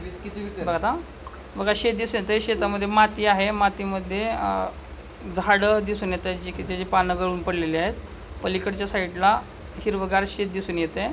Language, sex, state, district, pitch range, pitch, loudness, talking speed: Marathi, male, Maharashtra, Solapur, 180-210 Hz, 195 Hz, -24 LUFS, 185 wpm